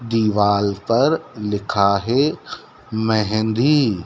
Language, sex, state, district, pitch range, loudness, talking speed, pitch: Hindi, male, Madhya Pradesh, Dhar, 105-120 Hz, -19 LUFS, 75 wpm, 110 Hz